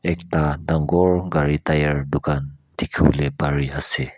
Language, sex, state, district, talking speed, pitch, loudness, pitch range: Nagamese, male, Nagaland, Kohima, 130 wpm, 75 Hz, -21 LUFS, 70-80 Hz